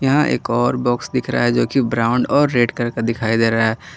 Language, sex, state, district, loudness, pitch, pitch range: Hindi, male, Jharkhand, Garhwa, -18 LUFS, 120 Hz, 115-125 Hz